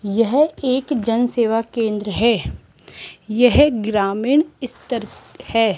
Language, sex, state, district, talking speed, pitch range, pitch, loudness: Hindi, female, Rajasthan, Jaipur, 105 wpm, 220-255 Hz, 230 Hz, -18 LUFS